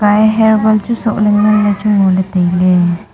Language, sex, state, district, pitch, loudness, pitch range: Wancho, female, Arunachal Pradesh, Longding, 210 Hz, -11 LUFS, 185-215 Hz